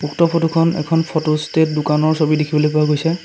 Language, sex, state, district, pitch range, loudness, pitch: Assamese, male, Assam, Sonitpur, 150-165 Hz, -17 LUFS, 155 Hz